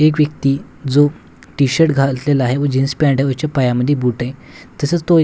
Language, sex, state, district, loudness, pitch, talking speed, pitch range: Marathi, male, Maharashtra, Washim, -16 LUFS, 140 Hz, 205 wpm, 135-150 Hz